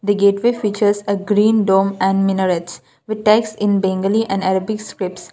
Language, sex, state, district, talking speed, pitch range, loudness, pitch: English, female, Assam, Kamrup Metropolitan, 170 wpm, 190-215 Hz, -17 LUFS, 200 Hz